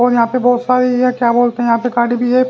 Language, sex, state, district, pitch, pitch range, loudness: Hindi, male, Haryana, Jhajjar, 245 Hz, 240-250 Hz, -14 LUFS